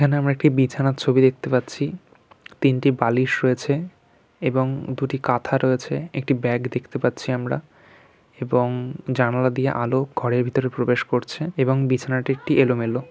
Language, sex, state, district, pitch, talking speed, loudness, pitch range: Bengali, male, West Bengal, Kolkata, 130 Hz, 145 wpm, -22 LUFS, 125-135 Hz